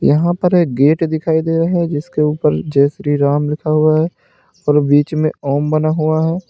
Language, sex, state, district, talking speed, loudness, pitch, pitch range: Hindi, male, Uttar Pradesh, Lalitpur, 210 wpm, -15 LUFS, 155 Hz, 145-165 Hz